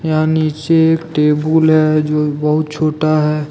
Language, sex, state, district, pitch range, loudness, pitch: Hindi, male, Jharkhand, Deoghar, 150-160 Hz, -14 LUFS, 155 Hz